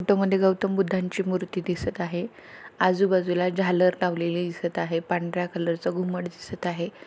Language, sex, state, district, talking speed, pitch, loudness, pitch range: Marathi, female, Maharashtra, Pune, 145 wpm, 180 Hz, -26 LUFS, 175-190 Hz